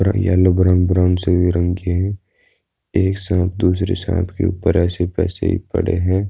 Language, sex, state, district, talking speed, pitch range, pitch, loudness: Hindi, male, Uttar Pradesh, Budaun, 160 wpm, 90-95 Hz, 90 Hz, -18 LUFS